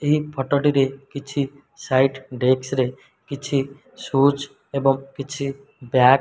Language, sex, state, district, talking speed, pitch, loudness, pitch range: Odia, male, Odisha, Malkangiri, 125 wpm, 135 Hz, -22 LUFS, 135-140 Hz